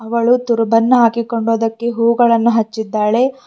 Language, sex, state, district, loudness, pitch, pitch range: Kannada, female, Karnataka, Bidar, -14 LUFS, 230 Hz, 225-235 Hz